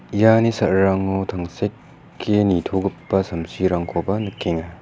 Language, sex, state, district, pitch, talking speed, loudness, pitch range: Garo, male, Meghalaya, West Garo Hills, 95 Hz, 75 wpm, -20 LUFS, 90-105 Hz